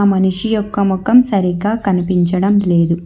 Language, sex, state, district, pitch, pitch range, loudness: Telugu, female, Telangana, Hyderabad, 195 Hz, 180-205 Hz, -14 LUFS